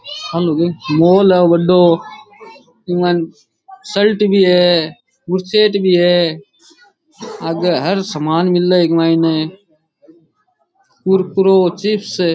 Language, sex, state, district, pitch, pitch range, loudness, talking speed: Rajasthani, male, Rajasthan, Churu, 180 Hz, 170-210 Hz, -14 LUFS, 100 wpm